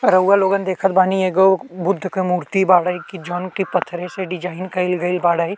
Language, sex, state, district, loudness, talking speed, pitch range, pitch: Bhojpuri, male, Uttar Pradesh, Ghazipur, -18 LUFS, 185 wpm, 180-190 Hz, 185 Hz